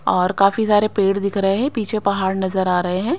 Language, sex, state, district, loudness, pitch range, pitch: Hindi, female, Haryana, Rohtak, -18 LUFS, 190-210 Hz, 195 Hz